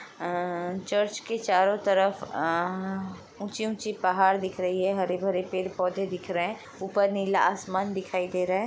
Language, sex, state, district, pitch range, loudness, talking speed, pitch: Hindi, female, Bihar, Jamui, 185-200 Hz, -28 LUFS, 160 wpm, 190 Hz